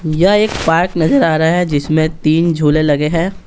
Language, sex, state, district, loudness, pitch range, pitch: Hindi, male, Bihar, Patna, -13 LUFS, 155-170 Hz, 160 Hz